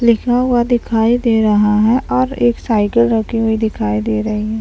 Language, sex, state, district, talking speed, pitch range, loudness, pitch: Hindi, male, Bihar, Madhepura, 195 wpm, 210-235 Hz, -15 LUFS, 220 Hz